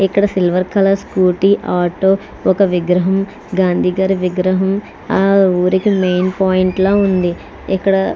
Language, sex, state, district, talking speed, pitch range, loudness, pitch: Telugu, female, Andhra Pradesh, Krishna, 130 wpm, 180-195 Hz, -15 LUFS, 190 Hz